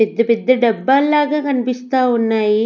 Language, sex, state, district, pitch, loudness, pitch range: Telugu, female, Andhra Pradesh, Sri Satya Sai, 250 Hz, -16 LUFS, 225-270 Hz